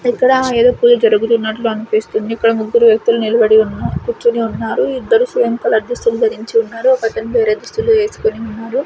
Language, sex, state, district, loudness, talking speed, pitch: Telugu, female, Andhra Pradesh, Sri Satya Sai, -14 LUFS, 160 wpm, 235 Hz